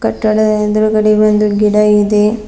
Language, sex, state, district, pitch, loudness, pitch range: Kannada, female, Karnataka, Bidar, 210 Hz, -11 LUFS, 210-215 Hz